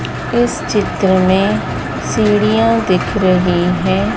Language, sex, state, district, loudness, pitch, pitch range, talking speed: Hindi, female, Madhya Pradesh, Dhar, -14 LUFS, 195 Hz, 185-215 Hz, 100 wpm